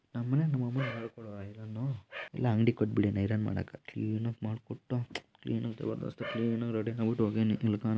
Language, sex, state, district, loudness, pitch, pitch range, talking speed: Kannada, male, Karnataka, Mysore, -33 LUFS, 115 Hz, 110-120 Hz, 130 wpm